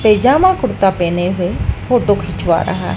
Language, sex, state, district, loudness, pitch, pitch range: Hindi, female, Madhya Pradesh, Dhar, -15 LUFS, 205 Hz, 180-250 Hz